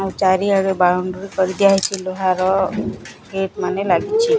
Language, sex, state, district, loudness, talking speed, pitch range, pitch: Odia, male, Odisha, Nuapada, -18 LUFS, 110 wpm, 185-195 Hz, 195 Hz